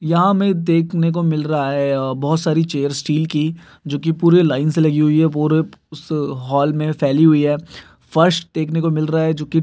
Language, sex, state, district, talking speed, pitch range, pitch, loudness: Hindi, male, Uttar Pradesh, Gorakhpur, 230 wpm, 150-165 Hz, 155 Hz, -17 LUFS